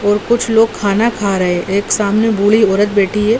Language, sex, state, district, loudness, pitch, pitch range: Hindi, female, Bihar, Saran, -13 LUFS, 205 Hz, 200-220 Hz